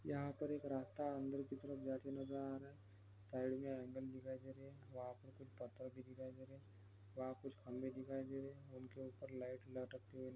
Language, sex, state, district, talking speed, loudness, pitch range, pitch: Hindi, male, Bihar, Araria, 230 wpm, -50 LUFS, 130-135 Hz, 130 Hz